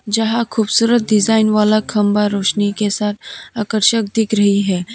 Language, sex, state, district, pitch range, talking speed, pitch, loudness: Hindi, female, Tripura, West Tripura, 205-225 Hz, 145 wpm, 215 Hz, -15 LUFS